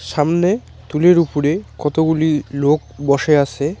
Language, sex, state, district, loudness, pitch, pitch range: Bengali, male, West Bengal, Cooch Behar, -17 LUFS, 150 Hz, 145-160 Hz